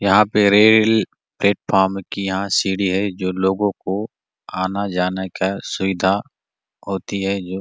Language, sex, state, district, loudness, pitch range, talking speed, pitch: Hindi, male, Chhattisgarh, Bastar, -19 LUFS, 95-100 Hz, 150 wpm, 95 Hz